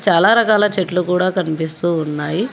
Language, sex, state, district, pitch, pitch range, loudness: Telugu, female, Telangana, Hyderabad, 180 Hz, 160-210 Hz, -16 LUFS